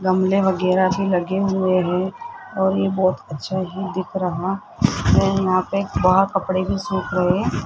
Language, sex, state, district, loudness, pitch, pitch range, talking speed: Hindi, male, Rajasthan, Jaipur, -20 LUFS, 190 Hz, 185-195 Hz, 165 wpm